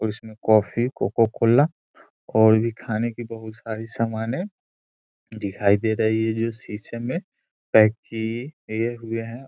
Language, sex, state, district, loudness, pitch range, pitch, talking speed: Hindi, male, Bihar, Muzaffarpur, -23 LUFS, 110-115 Hz, 110 Hz, 150 wpm